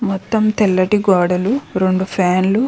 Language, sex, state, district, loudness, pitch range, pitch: Telugu, female, Andhra Pradesh, Krishna, -16 LUFS, 185-215 Hz, 195 Hz